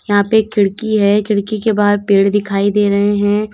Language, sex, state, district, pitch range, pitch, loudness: Hindi, female, Uttar Pradesh, Lalitpur, 200-210 Hz, 205 Hz, -14 LUFS